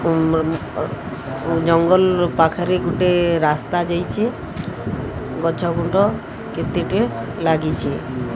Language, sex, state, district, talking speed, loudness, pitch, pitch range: Odia, female, Odisha, Sambalpur, 65 wpm, -20 LUFS, 170 Hz, 160-175 Hz